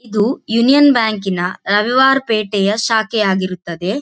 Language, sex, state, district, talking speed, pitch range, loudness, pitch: Kannada, female, Karnataka, Dakshina Kannada, 120 wpm, 195-235 Hz, -15 LUFS, 215 Hz